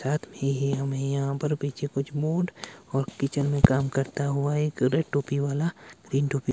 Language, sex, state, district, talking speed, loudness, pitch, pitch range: Hindi, male, Himachal Pradesh, Shimla, 195 wpm, -27 LUFS, 140 Hz, 135-145 Hz